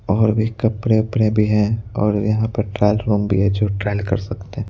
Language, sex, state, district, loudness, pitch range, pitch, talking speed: Hindi, male, Madhya Pradesh, Bhopal, -19 LUFS, 105-110 Hz, 105 Hz, 230 wpm